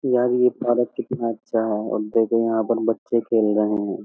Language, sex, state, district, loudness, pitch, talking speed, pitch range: Hindi, male, Uttar Pradesh, Jyotiba Phule Nagar, -22 LUFS, 115 Hz, 205 wpm, 110-120 Hz